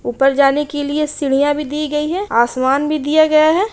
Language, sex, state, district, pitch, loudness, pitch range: Hindi, female, Bihar, Bhagalpur, 295 Hz, -15 LUFS, 275-305 Hz